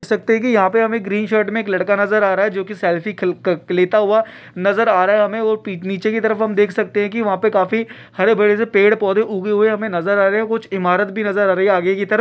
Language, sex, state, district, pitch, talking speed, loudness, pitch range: Bhojpuri, male, Bihar, Saran, 205 Hz, 305 wpm, -17 LUFS, 195-220 Hz